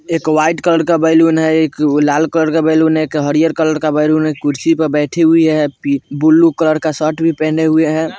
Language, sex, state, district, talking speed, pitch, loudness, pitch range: Bajjika, male, Bihar, Vaishali, 235 wpm, 155 Hz, -13 LUFS, 155-160 Hz